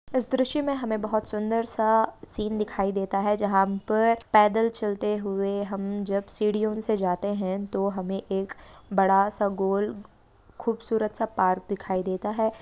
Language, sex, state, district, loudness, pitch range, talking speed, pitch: Hindi, female, Jharkhand, Sahebganj, -26 LUFS, 195-220 Hz, 160 wpm, 210 Hz